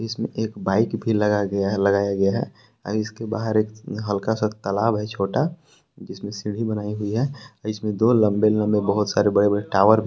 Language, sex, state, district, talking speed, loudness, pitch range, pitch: Hindi, male, Jharkhand, Palamu, 210 wpm, -22 LUFS, 105-110 Hz, 105 Hz